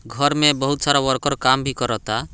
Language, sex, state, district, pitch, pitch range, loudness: Bhojpuri, male, Bihar, Muzaffarpur, 135 Hz, 125-145 Hz, -19 LUFS